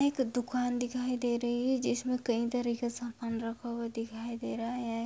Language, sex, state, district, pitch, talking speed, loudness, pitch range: Hindi, female, Bihar, Begusarai, 240 Hz, 200 wpm, -33 LUFS, 235-250 Hz